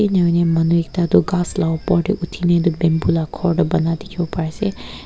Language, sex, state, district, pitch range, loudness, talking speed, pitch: Nagamese, female, Nagaland, Kohima, 165-180 Hz, -18 LUFS, 200 wpm, 170 Hz